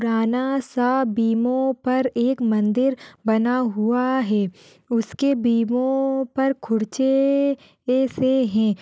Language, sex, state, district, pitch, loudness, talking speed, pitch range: Hindi, female, Uttar Pradesh, Deoria, 250 Hz, -21 LUFS, 100 wpm, 225-265 Hz